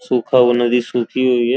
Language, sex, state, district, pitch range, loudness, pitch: Hindi, male, Uttar Pradesh, Gorakhpur, 120-125 Hz, -16 LUFS, 125 Hz